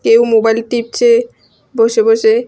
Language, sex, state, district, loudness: Bengali, female, Tripura, West Tripura, -12 LUFS